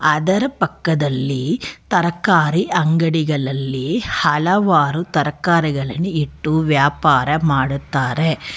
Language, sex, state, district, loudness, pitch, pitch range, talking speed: Kannada, female, Karnataka, Bangalore, -17 LUFS, 155 Hz, 140-170 Hz, 70 wpm